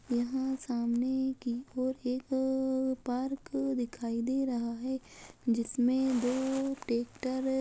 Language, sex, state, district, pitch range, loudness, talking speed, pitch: Hindi, female, Bihar, Muzaffarpur, 245-265 Hz, -33 LUFS, 110 wpm, 260 Hz